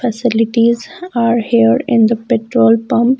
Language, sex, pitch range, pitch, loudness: English, female, 225-240 Hz, 235 Hz, -13 LUFS